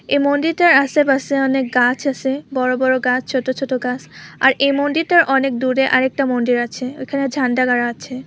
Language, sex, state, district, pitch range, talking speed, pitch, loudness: Bengali, female, West Bengal, Purulia, 255-275 Hz, 165 wpm, 265 Hz, -17 LUFS